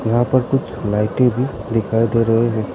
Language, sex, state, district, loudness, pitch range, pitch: Hindi, male, Arunachal Pradesh, Lower Dibang Valley, -18 LUFS, 110-125 Hz, 115 Hz